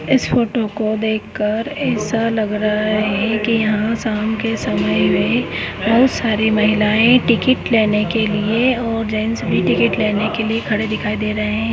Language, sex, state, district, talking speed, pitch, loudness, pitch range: Hindi, female, Goa, North and South Goa, 165 wpm, 220 Hz, -17 LUFS, 215-225 Hz